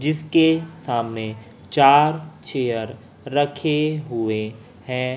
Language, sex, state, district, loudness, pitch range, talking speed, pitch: Hindi, male, Chhattisgarh, Raipur, -21 LUFS, 115-155 Hz, 80 wpm, 130 Hz